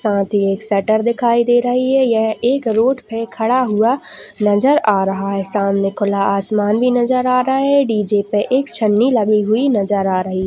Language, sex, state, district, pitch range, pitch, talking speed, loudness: Hindi, female, Chhattisgarh, Jashpur, 205-250 Hz, 220 Hz, 200 wpm, -16 LUFS